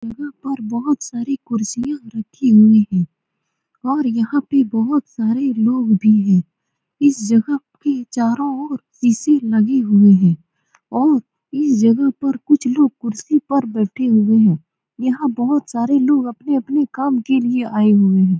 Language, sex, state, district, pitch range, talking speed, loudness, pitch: Hindi, female, Bihar, Saran, 220-275 Hz, 165 wpm, -17 LUFS, 245 Hz